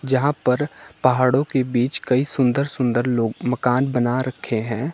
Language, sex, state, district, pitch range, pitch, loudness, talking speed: Hindi, male, Himachal Pradesh, Shimla, 125-135 Hz, 130 Hz, -21 LUFS, 160 wpm